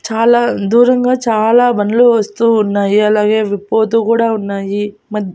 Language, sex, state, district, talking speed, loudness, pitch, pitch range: Telugu, female, Andhra Pradesh, Annamaya, 135 wpm, -13 LUFS, 220 Hz, 210-230 Hz